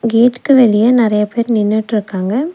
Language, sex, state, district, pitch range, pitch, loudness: Tamil, female, Tamil Nadu, Nilgiris, 210-240 Hz, 230 Hz, -13 LUFS